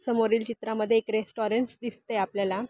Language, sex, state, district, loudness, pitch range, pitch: Marathi, female, Maharashtra, Aurangabad, -28 LUFS, 215-235 Hz, 225 Hz